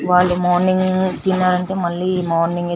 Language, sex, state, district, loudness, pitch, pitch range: Telugu, female, Telangana, Nalgonda, -17 LUFS, 180 Hz, 175-185 Hz